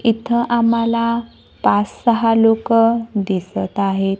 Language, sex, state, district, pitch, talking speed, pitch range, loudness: Marathi, female, Maharashtra, Gondia, 225 Hz, 100 wpm, 205-230 Hz, -17 LUFS